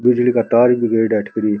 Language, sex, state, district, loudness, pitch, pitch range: Rajasthani, male, Rajasthan, Churu, -15 LUFS, 115 Hz, 110-125 Hz